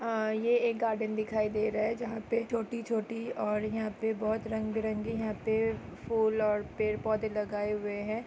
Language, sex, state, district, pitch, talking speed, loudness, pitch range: Hindi, female, Andhra Pradesh, Krishna, 220 Hz, 190 wpm, -32 LUFS, 215-225 Hz